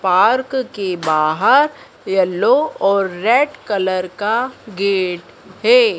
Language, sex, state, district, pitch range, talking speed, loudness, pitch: Hindi, female, Madhya Pradesh, Dhar, 185-260 Hz, 110 wpm, -16 LUFS, 200 Hz